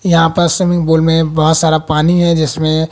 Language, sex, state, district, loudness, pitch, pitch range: Hindi, female, Haryana, Jhajjar, -12 LUFS, 160 Hz, 155-170 Hz